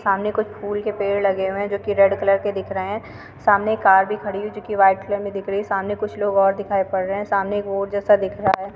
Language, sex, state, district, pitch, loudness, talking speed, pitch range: Hindi, female, Uttar Pradesh, Varanasi, 200 Hz, -20 LUFS, 315 wpm, 195-205 Hz